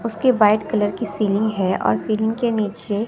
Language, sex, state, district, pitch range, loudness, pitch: Hindi, female, Bihar, West Champaran, 205-225 Hz, -20 LUFS, 215 Hz